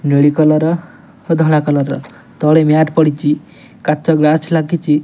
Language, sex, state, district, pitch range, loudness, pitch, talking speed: Odia, male, Odisha, Nuapada, 150-160 Hz, -14 LUFS, 155 Hz, 130 wpm